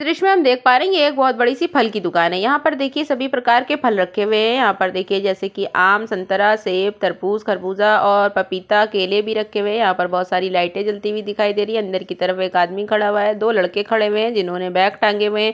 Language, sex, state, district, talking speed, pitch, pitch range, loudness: Hindi, female, Chhattisgarh, Sukma, 280 wpm, 210 Hz, 190-225 Hz, -17 LUFS